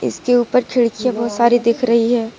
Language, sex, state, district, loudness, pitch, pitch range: Hindi, female, Jharkhand, Deoghar, -16 LUFS, 240 Hz, 230-245 Hz